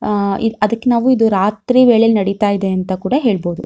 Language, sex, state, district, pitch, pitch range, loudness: Kannada, female, Karnataka, Shimoga, 210 Hz, 195-230 Hz, -14 LUFS